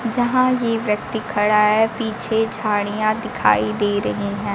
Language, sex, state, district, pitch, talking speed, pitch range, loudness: Hindi, female, Bihar, Kaimur, 215 Hz, 145 wpm, 205-225 Hz, -19 LUFS